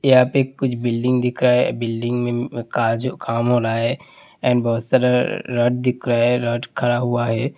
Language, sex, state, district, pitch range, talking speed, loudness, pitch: Hindi, male, Uttar Pradesh, Hamirpur, 120-125 Hz, 215 wpm, -19 LUFS, 120 Hz